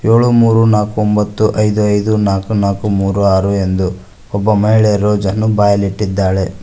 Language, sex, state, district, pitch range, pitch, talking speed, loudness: Kannada, male, Karnataka, Koppal, 100-105 Hz, 105 Hz, 145 wpm, -13 LUFS